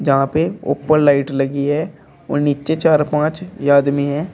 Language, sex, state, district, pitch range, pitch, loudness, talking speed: Hindi, male, Uttar Pradesh, Shamli, 140-155 Hz, 145 Hz, -17 LUFS, 165 wpm